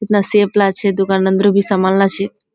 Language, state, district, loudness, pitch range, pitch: Surjapuri, Bihar, Kishanganj, -14 LUFS, 195-205 Hz, 195 Hz